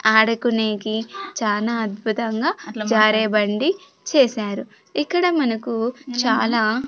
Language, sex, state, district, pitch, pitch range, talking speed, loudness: Telugu, female, Andhra Pradesh, Sri Satya Sai, 225 Hz, 215-260 Hz, 80 wpm, -20 LUFS